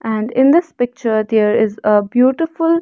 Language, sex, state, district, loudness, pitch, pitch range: English, female, Haryana, Rohtak, -15 LUFS, 245 Hz, 215-305 Hz